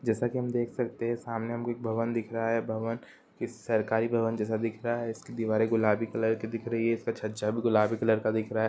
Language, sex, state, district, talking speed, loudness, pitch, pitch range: Hindi, male, Bihar, Sitamarhi, 270 wpm, -30 LUFS, 115 Hz, 110-115 Hz